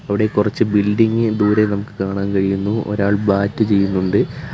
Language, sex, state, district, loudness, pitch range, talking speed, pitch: Malayalam, male, Kerala, Kollam, -17 LUFS, 100-110 Hz, 130 wpm, 105 Hz